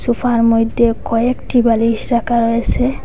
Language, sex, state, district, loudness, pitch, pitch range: Bengali, female, Assam, Hailakandi, -15 LUFS, 230 Hz, 230-240 Hz